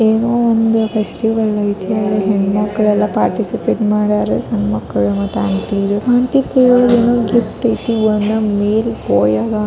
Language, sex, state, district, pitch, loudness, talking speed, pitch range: Kannada, male, Karnataka, Dharwad, 210 Hz, -15 LUFS, 150 wpm, 200-225 Hz